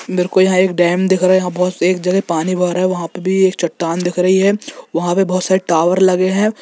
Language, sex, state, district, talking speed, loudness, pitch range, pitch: Hindi, male, Jharkhand, Jamtara, 260 wpm, -15 LUFS, 180-190 Hz, 185 Hz